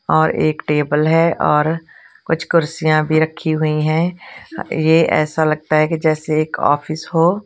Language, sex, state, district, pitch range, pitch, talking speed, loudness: Hindi, female, Punjab, Kapurthala, 155-165 Hz, 155 Hz, 155 wpm, -17 LUFS